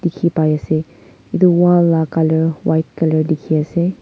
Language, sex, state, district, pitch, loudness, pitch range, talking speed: Nagamese, female, Nagaland, Kohima, 160 Hz, -16 LUFS, 155-175 Hz, 165 wpm